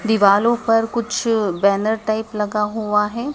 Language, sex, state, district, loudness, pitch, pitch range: Hindi, female, Madhya Pradesh, Dhar, -18 LUFS, 220 Hz, 210-225 Hz